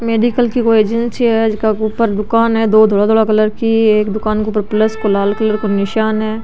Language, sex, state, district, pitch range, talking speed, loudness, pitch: Marwari, female, Rajasthan, Nagaur, 215-225 Hz, 250 wpm, -14 LUFS, 220 Hz